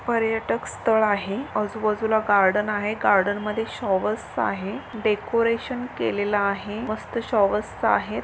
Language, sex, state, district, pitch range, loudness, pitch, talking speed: Marathi, female, Maharashtra, Sindhudurg, 205-225 Hz, -24 LUFS, 215 Hz, 115 wpm